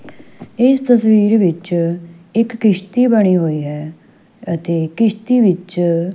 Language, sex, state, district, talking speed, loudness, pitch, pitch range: Punjabi, female, Punjab, Fazilka, 105 wpm, -15 LUFS, 190 Hz, 170-225 Hz